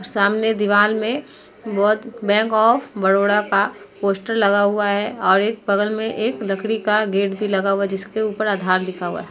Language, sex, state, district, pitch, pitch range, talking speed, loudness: Hindi, female, Uttar Pradesh, Muzaffarnagar, 205 Hz, 200-215 Hz, 200 wpm, -19 LUFS